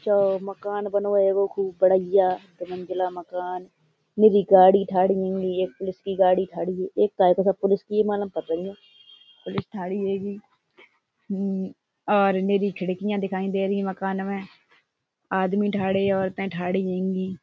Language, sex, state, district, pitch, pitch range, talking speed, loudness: Hindi, female, Uttar Pradesh, Budaun, 190 Hz, 185-200 Hz, 160 wpm, -23 LUFS